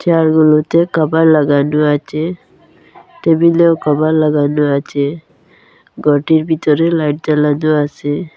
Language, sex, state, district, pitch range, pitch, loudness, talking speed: Bengali, female, Assam, Hailakandi, 150-165 Hz, 155 Hz, -13 LUFS, 95 wpm